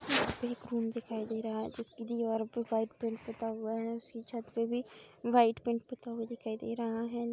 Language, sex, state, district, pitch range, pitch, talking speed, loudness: Hindi, female, Bihar, Saharsa, 225-235 Hz, 230 Hz, 230 wpm, -36 LUFS